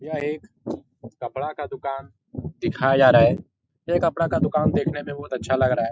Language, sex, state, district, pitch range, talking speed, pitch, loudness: Hindi, male, Bihar, Jahanabad, 130-155 Hz, 225 wpm, 135 Hz, -22 LUFS